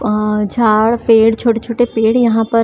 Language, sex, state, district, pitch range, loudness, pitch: Hindi, female, Maharashtra, Chandrapur, 220-230 Hz, -13 LUFS, 225 Hz